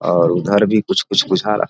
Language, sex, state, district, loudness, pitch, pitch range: Maithili, male, Bihar, Samastipur, -15 LUFS, 100 Hz, 90-105 Hz